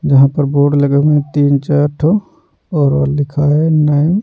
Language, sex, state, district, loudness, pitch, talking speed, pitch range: Hindi, male, Odisha, Nuapada, -13 LUFS, 145 Hz, 185 wpm, 140-150 Hz